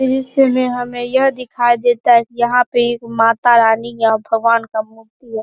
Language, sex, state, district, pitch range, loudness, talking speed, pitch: Hindi, female, Bihar, Saharsa, 225-245 Hz, -15 LUFS, 190 wpm, 240 Hz